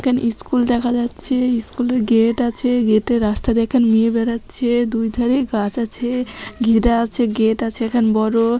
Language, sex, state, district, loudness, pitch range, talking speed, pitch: Bengali, female, West Bengal, North 24 Parganas, -18 LUFS, 225-245 Hz, 160 wpm, 235 Hz